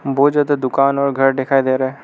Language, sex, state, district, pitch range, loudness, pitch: Hindi, male, Arunachal Pradesh, Lower Dibang Valley, 135-140 Hz, -16 LUFS, 135 Hz